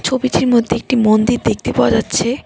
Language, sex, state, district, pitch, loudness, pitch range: Bengali, female, West Bengal, Cooch Behar, 240 Hz, -15 LUFS, 230-255 Hz